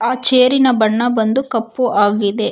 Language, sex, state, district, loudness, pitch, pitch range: Kannada, female, Karnataka, Bangalore, -14 LUFS, 235 Hz, 220-255 Hz